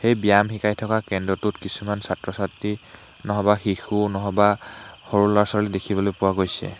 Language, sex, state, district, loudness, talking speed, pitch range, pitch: Assamese, male, Assam, Hailakandi, -22 LUFS, 140 wpm, 95-105 Hz, 105 Hz